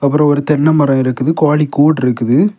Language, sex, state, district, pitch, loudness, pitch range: Tamil, male, Tamil Nadu, Kanyakumari, 145 Hz, -12 LUFS, 135-150 Hz